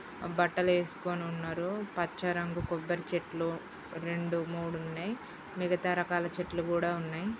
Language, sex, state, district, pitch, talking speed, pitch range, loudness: Telugu, female, Andhra Pradesh, Srikakulam, 175 Hz, 105 wpm, 170-180 Hz, -34 LUFS